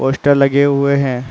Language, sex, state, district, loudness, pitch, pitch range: Hindi, male, Uttar Pradesh, Muzaffarnagar, -13 LUFS, 140 Hz, 135-140 Hz